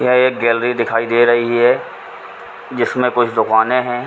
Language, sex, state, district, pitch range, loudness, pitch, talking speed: Hindi, male, Uttar Pradesh, Ghazipur, 115-125 Hz, -15 LUFS, 120 Hz, 175 wpm